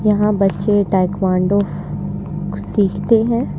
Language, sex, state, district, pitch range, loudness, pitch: Hindi, female, Uttar Pradesh, Lalitpur, 190-210 Hz, -17 LUFS, 200 Hz